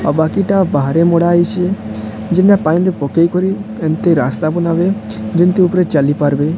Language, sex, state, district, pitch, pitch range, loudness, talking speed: Odia, male, Odisha, Sambalpur, 170 Hz, 145-180 Hz, -14 LUFS, 155 wpm